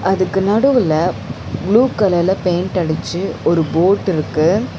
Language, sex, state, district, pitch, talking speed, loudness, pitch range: Tamil, female, Tamil Nadu, Chennai, 180 Hz, 110 wpm, -16 LUFS, 165-195 Hz